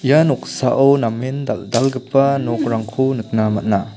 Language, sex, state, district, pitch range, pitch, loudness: Garo, male, Meghalaya, South Garo Hills, 110-135 Hz, 130 Hz, -17 LUFS